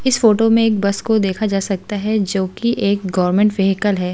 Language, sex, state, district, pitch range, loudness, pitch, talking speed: Hindi, female, Delhi, New Delhi, 195-220 Hz, -17 LUFS, 200 Hz, 230 wpm